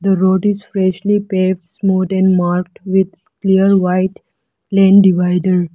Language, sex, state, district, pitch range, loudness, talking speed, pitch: English, female, Arunachal Pradesh, Lower Dibang Valley, 185-195 Hz, -14 LUFS, 135 wpm, 190 Hz